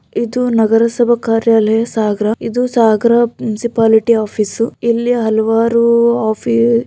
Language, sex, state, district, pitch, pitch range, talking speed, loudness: Kannada, female, Karnataka, Shimoga, 230 Hz, 220-235 Hz, 105 wpm, -13 LUFS